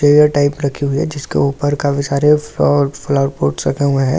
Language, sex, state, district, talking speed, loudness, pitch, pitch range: Hindi, male, Delhi, New Delhi, 230 wpm, -15 LUFS, 140 Hz, 140-145 Hz